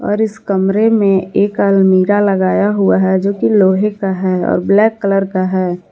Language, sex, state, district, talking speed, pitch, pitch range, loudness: Hindi, female, Jharkhand, Garhwa, 195 wpm, 195 Hz, 190-205 Hz, -13 LUFS